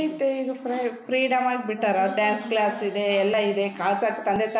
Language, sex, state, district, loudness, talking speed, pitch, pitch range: Kannada, female, Karnataka, Bellary, -24 LUFS, 195 wpm, 215 Hz, 205-250 Hz